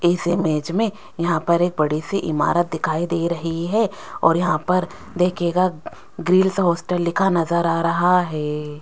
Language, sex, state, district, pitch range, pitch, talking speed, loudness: Hindi, female, Rajasthan, Jaipur, 165-180 Hz, 170 Hz, 165 wpm, -20 LUFS